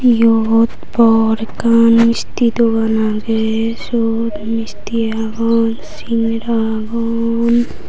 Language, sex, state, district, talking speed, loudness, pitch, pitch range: Chakma, female, Tripura, Unakoti, 85 wpm, -15 LUFS, 230 Hz, 225-230 Hz